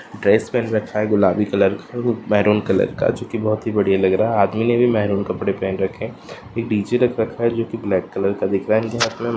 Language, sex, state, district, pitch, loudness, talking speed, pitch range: Hindi, male, Andhra Pradesh, Anantapur, 110 Hz, -19 LUFS, 230 wpm, 100-115 Hz